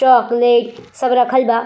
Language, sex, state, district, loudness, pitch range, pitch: Bhojpuri, female, Uttar Pradesh, Gorakhpur, -14 LUFS, 235-255 Hz, 245 Hz